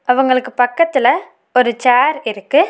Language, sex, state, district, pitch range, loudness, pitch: Tamil, female, Tamil Nadu, Nilgiris, 245-270 Hz, -14 LUFS, 255 Hz